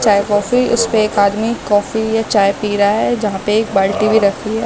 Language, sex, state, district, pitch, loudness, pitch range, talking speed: Hindi, female, Delhi, New Delhi, 210 Hz, -15 LUFS, 205-220 Hz, 205 wpm